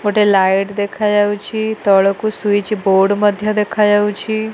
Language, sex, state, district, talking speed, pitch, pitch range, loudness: Odia, female, Odisha, Malkangiri, 120 wpm, 205 Hz, 200-215 Hz, -15 LUFS